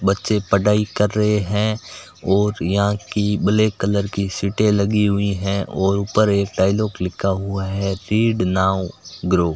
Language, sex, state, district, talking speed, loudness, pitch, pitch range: Hindi, male, Rajasthan, Bikaner, 165 wpm, -19 LUFS, 100 Hz, 95-105 Hz